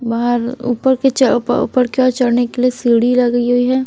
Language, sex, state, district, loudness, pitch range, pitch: Hindi, female, Bihar, West Champaran, -15 LUFS, 240-255 Hz, 245 Hz